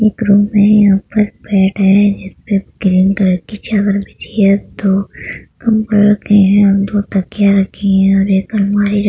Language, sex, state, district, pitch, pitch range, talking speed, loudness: Hindi, female, Uttar Pradesh, Budaun, 200 Hz, 195-205 Hz, 170 wpm, -12 LUFS